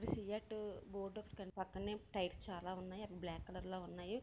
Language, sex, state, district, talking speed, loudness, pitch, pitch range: Telugu, female, Andhra Pradesh, Visakhapatnam, 185 wpm, -47 LUFS, 195 Hz, 185-210 Hz